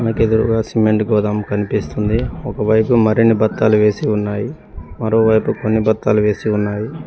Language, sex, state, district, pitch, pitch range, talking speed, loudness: Telugu, male, Telangana, Mahabubabad, 110 Hz, 105-110 Hz, 125 wpm, -16 LUFS